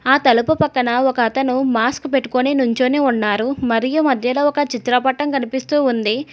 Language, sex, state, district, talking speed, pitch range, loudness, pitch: Telugu, female, Telangana, Hyderabad, 130 wpm, 240-275 Hz, -17 LUFS, 255 Hz